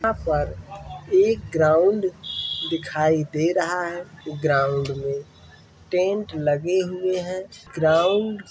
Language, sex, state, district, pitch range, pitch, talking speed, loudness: Hindi, male, Uttar Pradesh, Varanasi, 155-185 Hz, 175 Hz, 115 wpm, -22 LUFS